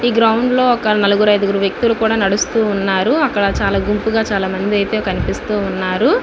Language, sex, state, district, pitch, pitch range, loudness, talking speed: Telugu, female, Andhra Pradesh, Visakhapatnam, 210 Hz, 200-225 Hz, -15 LUFS, 155 wpm